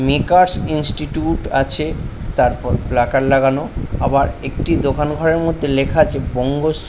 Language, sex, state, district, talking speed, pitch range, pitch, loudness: Bengali, male, West Bengal, Paschim Medinipur, 130 wpm, 135-155 Hz, 145 Hz, -17 LUFS